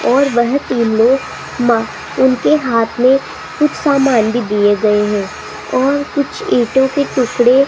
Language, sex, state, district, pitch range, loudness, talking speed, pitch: Hindi, female, Rajasthan, Jaipur, 230-275 Hz, -14 LUFS, 155 wpm, 250 Hz